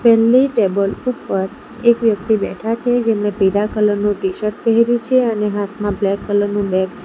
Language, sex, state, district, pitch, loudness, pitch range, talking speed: Gujarati, female, Gujarat, Valsad, 210 Hz, -17 LUFS, 205-235 Hz, 180 wpm